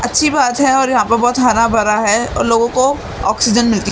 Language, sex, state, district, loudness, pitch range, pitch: Hindi, female, Maharashtra, Mumbai Suburban, -13 LUFS, 225-255 Hz, 240 Hz